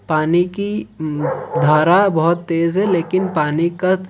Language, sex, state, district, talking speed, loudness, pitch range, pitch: Hindi, male, Odisha, Khordha, 130 wpm, -17 LUFS, 155-185 Hz, 170 Hz